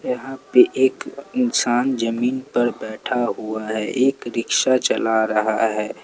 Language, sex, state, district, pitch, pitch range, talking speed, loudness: Hindi, male, Jharkhand, Palamu, 120 Hz, 110-130 Hz, 140 wpm, -20 LUFS